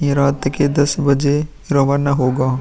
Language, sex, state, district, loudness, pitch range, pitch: Hindi, male, Uttar Pradesh, Muzaffarnagar, -17 LUFS, 135-145 Hz, 140 Hz